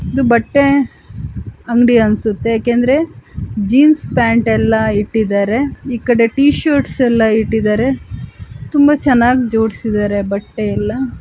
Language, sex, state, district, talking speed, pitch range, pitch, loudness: Kannada, female, Karnataka, Chamarajanagar, 90 wpm, 220-265 Hz, 235 Hz, -14 LUFS